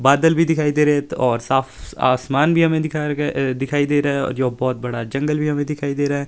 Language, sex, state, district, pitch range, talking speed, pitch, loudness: Hindi, male, Himachal Pradesh, Shimla, 130-150 Hz, 250 wpm, 140 Hz, -19 LUFS